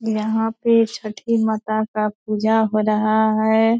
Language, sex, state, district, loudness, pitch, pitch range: Hindi, female, Bihar, Purnia, -19 LUFS, 220 Hz, 215-225 Hz